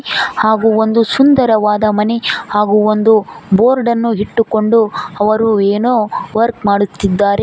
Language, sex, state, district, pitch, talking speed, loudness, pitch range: Kannada, female, Karnataka, Koppal, 215 Hz, 105 wpm, -13 LUFS, 210-230 Hz